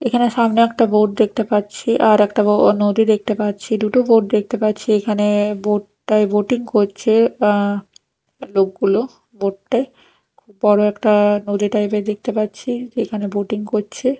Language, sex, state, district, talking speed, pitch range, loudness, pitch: Bengali, female, Odisha, Nuapada, 150 wpm, 205-230 Hz, -17 LUFS, 215 Hz